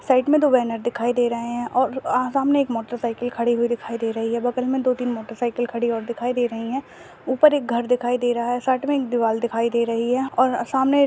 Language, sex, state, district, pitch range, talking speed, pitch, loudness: Hindi, female, Goa, North and South Goa, 235-255 Hz, 265 wpm, 245 Hz, -22 LUFS